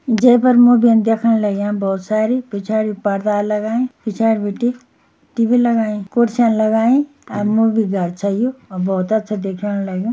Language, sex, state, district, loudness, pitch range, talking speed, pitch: Garhwali, female, Uttarakhand, Uttarkashi, -16 LUFS, 205-235 Hz, 155 wpm, 220 Hz